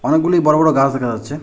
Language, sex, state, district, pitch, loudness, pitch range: Bengali, male, West Bengal, Alipurduar, 150 Hz, -15 LUFS, 135-160 Hz